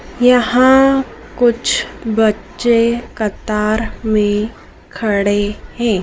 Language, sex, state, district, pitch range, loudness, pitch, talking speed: Hindi, female, Madhya Pradesh, Dhar, 210-240 Hz, -15 LUFS, 225 Hz, 70 wpm